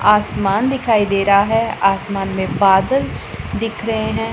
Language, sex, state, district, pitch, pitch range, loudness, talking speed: Hindi, female, Punjab, Pathankot, 200 Hz, 195-225 Hz, -17 LUFS, 150 wpm